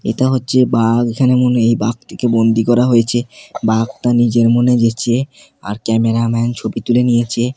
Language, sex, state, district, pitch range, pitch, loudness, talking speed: Bengali, male, West Bengal, Kolkata, 115-125 Hz, 120 Hz, -14 LUFS, 160 wpm